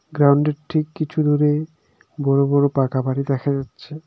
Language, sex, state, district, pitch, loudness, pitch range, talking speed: Bengali, male, West Bengal, Darjeeling, 145 Hz, -20 LUFS, 140-155 Hz, 145 wpm